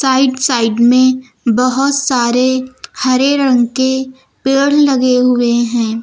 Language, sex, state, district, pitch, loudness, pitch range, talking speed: Hindi, female, Uttar Pradesh, Lucknow, 255 Hz, -13 LUFS, 245-265 Hz, 120 wpm